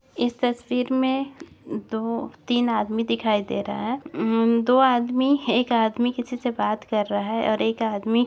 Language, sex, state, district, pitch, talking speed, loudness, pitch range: Hindi, female, Chhattisgarh, Bastar, 240 Hz, 165 wpm, -23 LUFS, 225-250 Hz